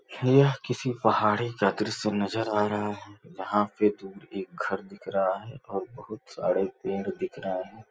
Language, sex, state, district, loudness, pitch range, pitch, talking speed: Hindi, male, Uttar Pradesh, Gorakhpur, -28 LUFS, 100-120 Hz, 105 Hz, 180 wpm